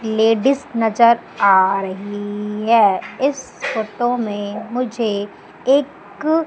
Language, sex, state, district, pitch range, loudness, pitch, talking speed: Hindi, female, Madhya Pradesh, Umaria, 205-250 Hz, -18 LUFS, 225 Hz, 95 wpm